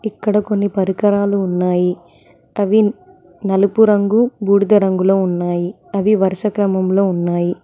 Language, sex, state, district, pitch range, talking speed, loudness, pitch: Telugu, female, Telangana, Mahabubabad, 185-210 Hz, 110 wpm, -16 LUFS, 195 Hz